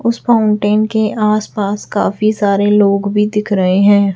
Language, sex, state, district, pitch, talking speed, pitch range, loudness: Hindi, female, Chhattisgarh, Raipur, 210 Hz, 175 wpm, 200-215 Hz, -13 LUFS